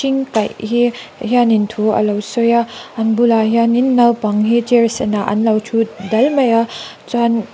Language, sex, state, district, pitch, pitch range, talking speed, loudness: Mizo, female, Mizoram, Aizawl, 230 Hz, 215-240 Hz, 175 wpm, -15 LUFS